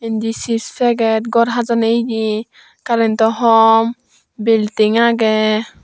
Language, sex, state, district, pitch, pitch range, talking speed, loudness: Chakma, female, Tripura, Dhalai, 225 Hz, 220-235 Hz, 105 wpm, -15 LUFS